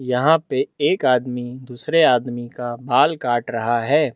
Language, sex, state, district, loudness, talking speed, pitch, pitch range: Hindi, male, Chhattisgarh, Bastar, -19 LUFS, 160 wpm, 125 Hz, 120-155 Hz